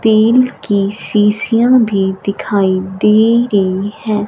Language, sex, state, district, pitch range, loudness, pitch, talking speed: Hindi, female, Punjab, Fazilka, 200-225 Hz, -13 LUFS, 210 Hz, 110 wpm